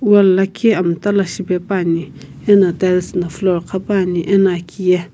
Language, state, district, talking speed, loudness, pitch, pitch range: Sumi, Nagaland, Kohima, 150 wpm, -16 LUFS, 185 Hz, 175-195 Hz